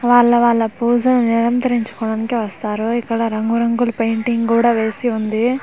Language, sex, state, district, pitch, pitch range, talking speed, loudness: Telugu, female, Andhra Pradesh, Manyam, 230 Hz, 225-240 Hz, 150 wpm, -17 LUFS